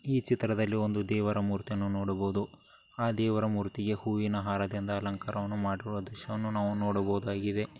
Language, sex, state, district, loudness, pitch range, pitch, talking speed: Kannada, male, Karnataka, Dakshina Kannada, -32 LUFS, 100-110 Hz, 105 Hz, 125 wpm